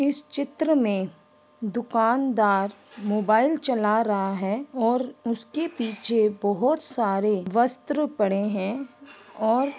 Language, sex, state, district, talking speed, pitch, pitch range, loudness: Hindi, female, Chhattisgarh, Bastar, 105 wpm, 230 Hz, 205-275 Hz, -25 LUFS